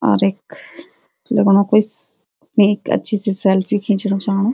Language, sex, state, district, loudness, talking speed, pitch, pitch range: Garhwali, female, Uttarakhand, Uttarkashi, -17 LUFS, 160 wpm, 205 Hz, 200-230 Hz